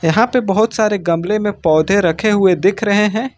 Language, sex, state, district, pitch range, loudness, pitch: Hindi, male, Uttar Pradesh, Lucknow, 180-215 Hz, -15 LUFS, 205 Hz